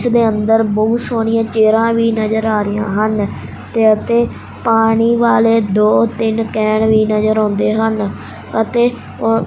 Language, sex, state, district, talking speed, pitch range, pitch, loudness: Punjabi, male, Punjab, Fazilka, 140 wpm, 215-230 Hz, 225 Hz, -14 LUFS